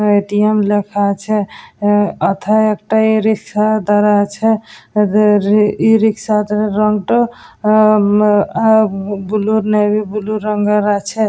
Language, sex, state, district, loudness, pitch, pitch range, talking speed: Bengali, female, West Bengal, Jalpaiguri, -14 LUFS, 210 Hz, 205-215 Hz, 130 wpm